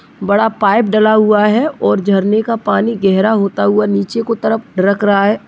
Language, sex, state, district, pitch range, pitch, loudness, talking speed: Hindi, male, Uttar Pradesh, Jalaun, 200-225 Hz, 210 Hz, -13 LUFS, 195 wpm